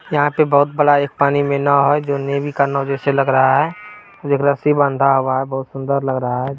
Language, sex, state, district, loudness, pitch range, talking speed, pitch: Maithili, male, Bihar, Purnia, -16 LUFS, 135-145 Hz, 230 wpm, 140 Hz